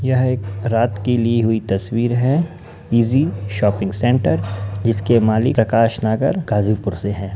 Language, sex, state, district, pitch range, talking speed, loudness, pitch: Hindi, male, Uttar Pradesh, Ghazipur, 100-120 Hz, 145 wpm, -18 LUFS, 115 Hz